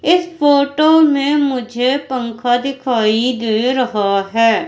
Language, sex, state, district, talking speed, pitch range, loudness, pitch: Hindi, female, Madhya Pradesh, Katni, 115 wpm, 230-285 Hz, -15 LUFS, 255 Hz